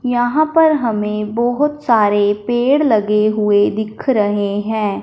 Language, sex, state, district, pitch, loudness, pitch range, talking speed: Hindi, male, Punjab, Fazilka, 220 Hz, -15 LUFS, 210-255 Hz, 130 wpm